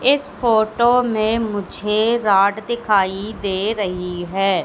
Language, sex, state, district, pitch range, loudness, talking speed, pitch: Hindi, female, Madhya Pradesh, Katni, 195-230 Hz, -18 LUFS, 115 wpm, 210 Hz